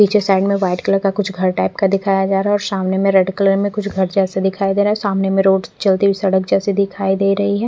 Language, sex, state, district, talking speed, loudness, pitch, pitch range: Hindi, female, Chandigarh, Chandigarh, 295 wpm, -16 LUFS, 195 Hz, 190-200 Hz